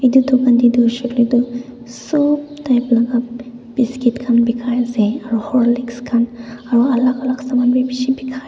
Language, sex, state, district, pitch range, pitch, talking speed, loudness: Nagamese, female, Nagaland, Dimapur, 240-255 Hz, 245 Hz, 165 wpm, -16 LUFS